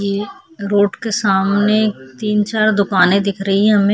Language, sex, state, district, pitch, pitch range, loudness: Hindi, female, Chhattisgarh, Kabirdham, 205 Hz, 200-215 Hz, -16 LUFS